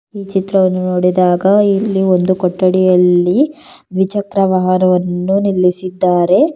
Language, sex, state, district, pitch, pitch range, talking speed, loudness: Kannada, female, Karnataka, Bangalore, 185 Hz, 180-195 Hz, 80 wpm, -13 LUFS